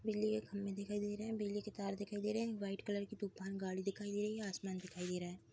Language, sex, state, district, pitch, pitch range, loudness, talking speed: Hindi, female, Bihar, East Champaran, 205 Hz, 195-210 Hz, -42 LUFS, 305 wpm